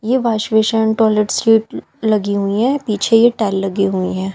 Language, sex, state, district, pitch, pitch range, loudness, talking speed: Hindi, female, Haryana, Jhajjar, 220 Hz, 200-225 Hz, -15 LUFS, 180 wpm